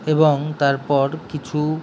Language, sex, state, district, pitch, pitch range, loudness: Bengali, male, West Bengal, Jhargram, 150 Hz, 140-155 Hz, -20 LUFS